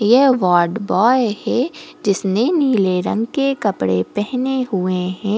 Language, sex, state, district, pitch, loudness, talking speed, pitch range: Hindi, female, Goa, North and South Goa, 215 Hz, -17 LUFS, 120 wpm, 190-255 Hz